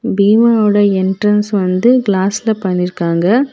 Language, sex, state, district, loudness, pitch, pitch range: Tamil, female, Tamil Nadu, Kanyakumari, -13 LUFS, 205 Hz, 190-220 Hz